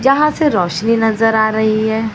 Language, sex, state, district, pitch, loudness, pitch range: Hindi, female, Maharashtra, Mumbai Suburban, 225 Hz, -14 LUFS, 220-240 Hz